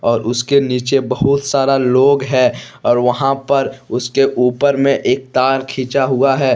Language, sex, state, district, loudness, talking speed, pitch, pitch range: Hindi, male, Jharkhand, Deoghar, -15 LUFS, 165 wpm, 135 Hz, 125-140 Hz